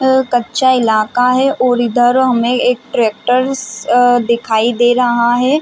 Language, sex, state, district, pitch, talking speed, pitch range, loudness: Hindi, female, Chhattisgarh, Raigarh, 245 Hz, 160 wpm, 235-255 Hz, -13 LUFS